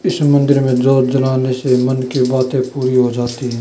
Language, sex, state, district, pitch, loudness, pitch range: Hindi, male, Haryana, Charkhi Dadri, 130 Hz, -15 LUFS, 125-135 Hz